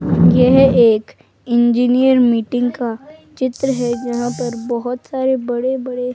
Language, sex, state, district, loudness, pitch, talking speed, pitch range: Hindi, female, Himachal Pradesh, Shimla, -16 LUFS, 245 Hz, 125 wpm, 235-255 Hz